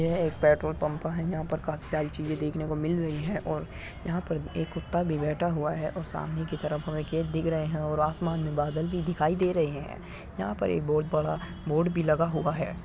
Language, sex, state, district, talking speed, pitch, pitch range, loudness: Hindi, male, Uttar Pradesh, Muzaffarnagar, 245 wpm, 155 Hz, 150-165 Hz, -29 LUFS